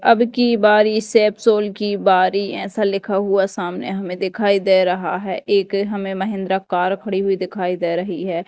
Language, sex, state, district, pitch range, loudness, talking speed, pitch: Hindi, female, Madhya Pradesh, Dhar, 185-205 Hz, -18 LUFS, 185 wpm, 195 Hz